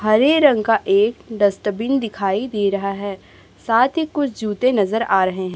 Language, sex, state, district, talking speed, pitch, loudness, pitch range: Hindi, female, Chhattisgarh, Raipur, 185 wpm, 215 Hz, -18 LUFS, 200-250 Hz